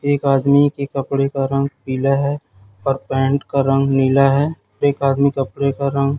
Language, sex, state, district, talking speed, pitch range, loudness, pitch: Hindi, male, Chhattisgarh, Raipur, 185 wpm, 135-140 Hz, -18 LUFS, 140 Hz